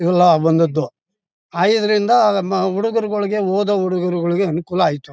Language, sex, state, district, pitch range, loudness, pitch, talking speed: Kannada, male, Karnataka, Mysore, 170-205 Hz, -17 LUFS, 190 Hz, 95 wpm